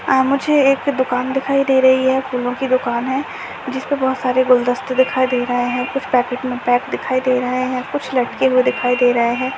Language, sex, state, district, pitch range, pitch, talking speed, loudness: Hindi, female, Chhattisgarh, Jashpur, 250-265 Hz, 255 Hz, 220 wpm, -17 LUFS